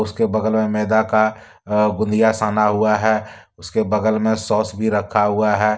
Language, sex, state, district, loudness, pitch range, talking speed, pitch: Hindi, male, Jharkhand, Deoghar, -18 LUFS, 105-110 Hz, 185 wpm, 110 Hz